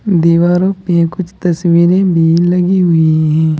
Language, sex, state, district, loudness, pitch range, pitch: Hindi, male, Uttar Pradesh, Saharanpur, -11 LUFS, 165-180 Hz, 175 Hz